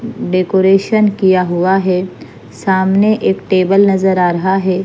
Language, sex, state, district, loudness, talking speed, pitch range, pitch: Hindi, female, Punjab, Fazilka, -13 LUFS, 135 wpm, 185-195 Hz, 190 Hz